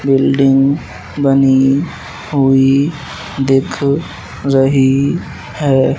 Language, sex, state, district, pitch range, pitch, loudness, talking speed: Hindi, male, Madhya Pradesh, Dhar, 135-140 Hz, 135 Hz, -13 LUFS, 60 wpm